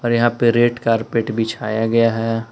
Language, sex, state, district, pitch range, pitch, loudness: Hindi, male, Jharkhand, Palamu, 115-120 Hz, 115 Hz, -18 LUFS